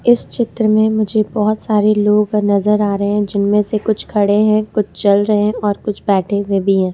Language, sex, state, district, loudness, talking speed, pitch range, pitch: Hindi, female, Jharkhand, Ranchi, -15 LUFS, 225 wpm, 200-215 Hz, 210 Hz